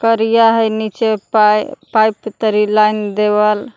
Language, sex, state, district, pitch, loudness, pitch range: Magahi, female, Jharkhand, Palamu, 220 Hz, -14 LUFS, 210-225 Hz